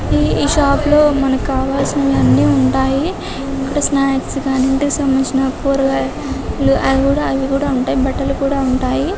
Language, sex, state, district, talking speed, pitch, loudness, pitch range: Telugu, female, Telangana, Karimnagar, 120 wpm, 270 Hz, -15 LUFS, 260-275 Hz